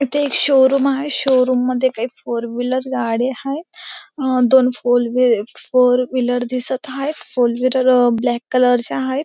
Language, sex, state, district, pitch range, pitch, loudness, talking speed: Marathi, female, Maharashtra, Pune, 245-270 Hz, 255 Hz, -17 LUFS, 160 wpm